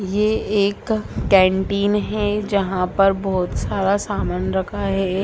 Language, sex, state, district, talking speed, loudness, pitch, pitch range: Hindi, female, Bihar, Sitamarhi, 125 wpm, -20 LUFS, 200 Hz, 190-205 Hz